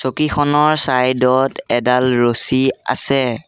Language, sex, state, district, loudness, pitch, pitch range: Assamese, male, Assam, Sonitpur, -15 LUFS, 130 Hz, 125-145 Hz